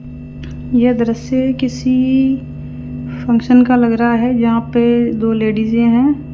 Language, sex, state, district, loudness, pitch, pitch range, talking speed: Hindi, female, Rajasthan, Jaipur, -14 LUFS, 235 Hz, 220-250 Hz, 125 wpm